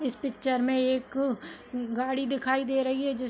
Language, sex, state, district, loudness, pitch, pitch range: Hindi, female, Uttar Pradesh, Hamirpur, -29 LUFS, 260 Hz, 255-270 Hz